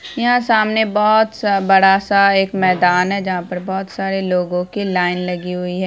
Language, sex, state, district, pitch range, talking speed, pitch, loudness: Hindi, female, Bihar, Araria, 180-210 Hz, 195 wpm, 195 Hz, -16 LUFS